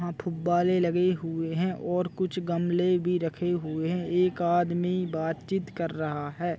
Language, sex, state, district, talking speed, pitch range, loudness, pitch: Hindi, male, Chhattisgarh, Raigarh, 165 wpm, 165-180 Hz, -28 LUFS, 175 Hz